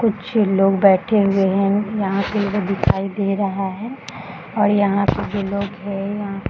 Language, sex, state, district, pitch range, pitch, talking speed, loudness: Hindi, female, Bihar, Araria, 195-205 Hz, 200 Hz, 175 wpm, -19 LUFS